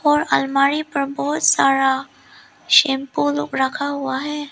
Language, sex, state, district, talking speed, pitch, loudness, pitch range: Hindi, female, Arunachal Pradesh, Lower Dibang Valley, 135 wpm, 280 Hz, -18 LUFS, 270-295 Hz